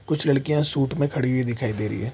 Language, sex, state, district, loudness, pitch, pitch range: Hindi, male, Bihar, Saharsa, -24 LUFS, 135 Hz, 120-150 Hz